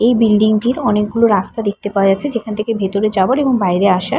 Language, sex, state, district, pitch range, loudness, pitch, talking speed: Bengali, female, West Bengal, Paschim Medinipur, 200-230 Hz, -15 LUFS, 215 Hz, 200 wpm